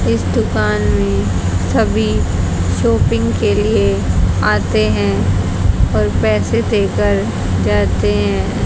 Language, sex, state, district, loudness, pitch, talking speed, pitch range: Hindi, female, Haryana, Jhajjar, -15 LUFS, 100 Hz, 95 wpm, 90-105 Hz